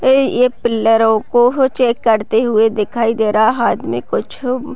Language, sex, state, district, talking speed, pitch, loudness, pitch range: Hindi, female, Bihar, Gopalganj, 140 wpm, 235 Hz, -14 LUFS, 220-250 Hz